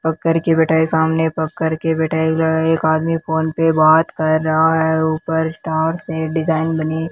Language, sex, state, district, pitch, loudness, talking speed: Hindi, male, Rajasthan, Bikaner, 160 Hz, -17 LUFS, 185 wpm